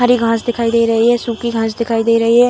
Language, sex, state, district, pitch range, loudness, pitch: Hindi, female, Bihar, Kishanganj, 230-240 Hz, -14 LUFS, 230 Hz